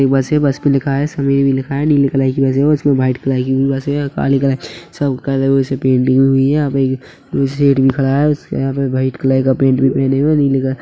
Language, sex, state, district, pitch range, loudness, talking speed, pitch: Hindi, male, Chhattisgarh, Rajnandgaon, 135-140 Hz, -15 LUFS, 285 wpm, 135 Hz